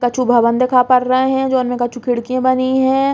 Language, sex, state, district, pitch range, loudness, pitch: Bundeli, female, Uttar Pradesh, Hamirpur, 245-260 Hz, -15 LUFS, 255 Hz